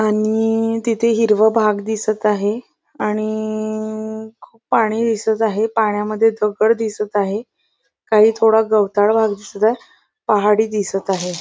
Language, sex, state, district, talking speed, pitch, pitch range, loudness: Marathi, female, Maharashtra, Nagpur, 125 wpm, 215 Hz, 210-225 Hz, -17 LUFS